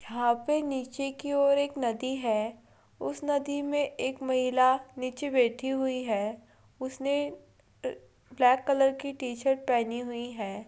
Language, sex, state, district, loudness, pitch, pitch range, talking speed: Hindi, female, Uttarakhand, Tehri Garhwal, -29 LUFS, 260 Hz, 240-280 Hz, 140 wpm